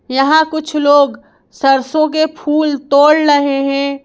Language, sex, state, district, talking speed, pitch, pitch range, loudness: Hindi, female, Madhya Pradesh, Bhopal, 135 wpm, 290 Hz, 275-310 Hz, -13 LUFS